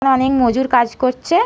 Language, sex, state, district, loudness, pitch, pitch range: Bengali, female, West Bengal, North 24 Parganas, -16 LUFS, 260 Hz, 250-270 Hz